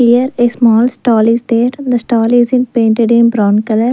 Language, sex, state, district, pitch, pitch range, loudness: English, female, Punjab, Fazilka, 235 Hz, 230-245 Hz, -11 LUFS